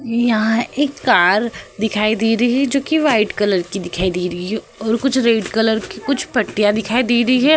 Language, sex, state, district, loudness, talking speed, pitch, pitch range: Hindi, female, Uttar Pradesh, Hamirpur, -17 LUFS, 220 wpm, 225 Hz, 210-250 Hz